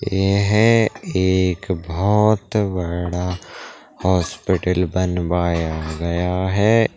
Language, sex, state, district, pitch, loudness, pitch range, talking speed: Hindi, male, Bihar, Darbhanga, 90 Hz, -19 LUFS, 90-100 Hz, 70 wpm